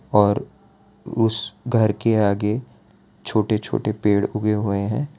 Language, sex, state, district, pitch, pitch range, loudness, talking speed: Hindi, male, Gujarat, Valsad, 105 Hz, 105-115 Hz, -21 LUFS, 125 wpm